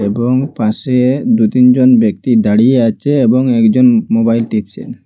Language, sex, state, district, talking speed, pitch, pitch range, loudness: Bengali, male, Assam, Hailakandi, 130 wpm, 125 Hz, 110-130 Hz, -11 LUFS